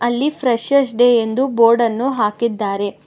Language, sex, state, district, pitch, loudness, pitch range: Kannada, female, Karnataka, Bangalore, 235 Hz, -16 LUFS, 225-260 Hz